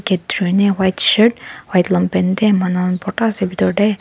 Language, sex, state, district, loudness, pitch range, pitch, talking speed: Nagamese, female, Nagaland, Dimapur, -15 LUFS, 185-210 Hz, 190 Hz, 165 wpm